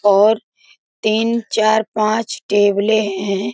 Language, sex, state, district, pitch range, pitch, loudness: Hindi, female, Bihar, Sitamarhi, 205-220 Hz, 215 Hz, -17 LUFS